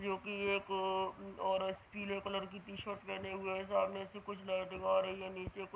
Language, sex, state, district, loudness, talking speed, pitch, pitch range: Hindi, male, Uttar Pradesh, Hamirpur, -39 LUFS, 240 wpm, 195 Hz, 190-200 Hz